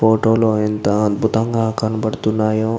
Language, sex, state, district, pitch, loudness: Telugu, male, Andhra Pradesh, Visakhapatnam, 110 Hz, -17 LUFS